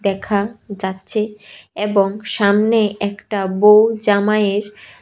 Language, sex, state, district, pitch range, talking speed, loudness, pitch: Bengali, female, Tripura, West Tripura, 200-215 Hz, 95 wpm, -17 LUFS, 205 Hz